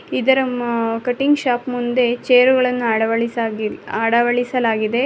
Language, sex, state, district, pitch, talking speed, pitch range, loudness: Kannada, female, Karnataka, Bangalore, 245 Hz, 95 wpm, 230-250 Hz, -18 LUFS